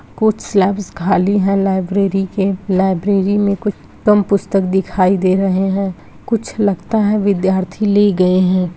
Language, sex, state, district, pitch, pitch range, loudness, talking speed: Hindi, female, Bihar, Darbhanga, 195 Hz, 190-205 Hz, -15 LUFS, 150 wpm